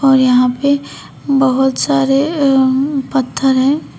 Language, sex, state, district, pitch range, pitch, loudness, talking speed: Hindi, female, Uttar Pradesh, Shamli, 260-280 Hz, 270 Hz, -13 LUFS, 135 wpm